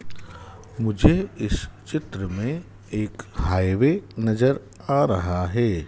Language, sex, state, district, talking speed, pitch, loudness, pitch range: Hindi, male, Madhya Pradesh, Dhar, 100 wpm, 105 Hz, -24 LUFS, 95-130 Hz